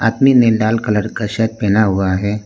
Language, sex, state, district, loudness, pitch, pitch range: Hindi, male, Arunachal Pradesh, Lower Dibang Valley, -15 LUFS, 110 Hz, 105-115 Hz